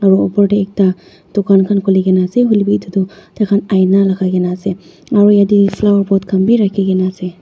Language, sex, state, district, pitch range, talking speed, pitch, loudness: Nagamese, female, Nagaland, Dimapur, 190-205 Hz, 195 wpm, 195 Hz, -13 LUFS